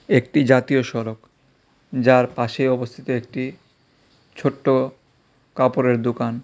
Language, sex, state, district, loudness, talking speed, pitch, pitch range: Bengali, male, Tripura, West Tripura, -20 LUFS, 95 wpm, 130 Hz, 120-135 Hz